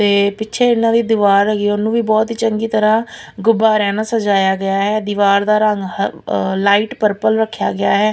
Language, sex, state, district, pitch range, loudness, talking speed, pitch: Punjabi, female, Punjab, Pathankot, 200-220 Hz, -15 LUFS, 200 wpm, 215 Hz